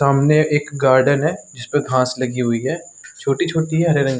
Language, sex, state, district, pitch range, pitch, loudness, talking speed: Hindi, male, Chhattisgarh, Sarguja, 130-155 Hz, 140 Hz, -18 LUFS, 215 wpm